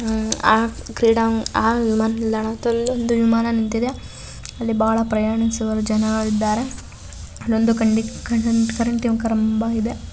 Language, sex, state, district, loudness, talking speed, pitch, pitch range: Kannada, female, Karnataka, Belgaum, -20 LUFS, 65 wpm, 225 Hz, 220-230 Hz